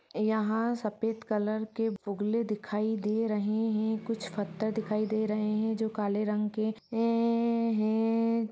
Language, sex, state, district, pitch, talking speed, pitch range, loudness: Hindi, female, Uttar Pradesh, Deoria, 220 Hz, 150 wpm, 215-225 Hz, -30 LUFS